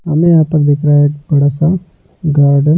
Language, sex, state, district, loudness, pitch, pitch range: Hindi, male, Delhi, New Delhi, -12 LUFS, 150 Hz, 145-165 Hz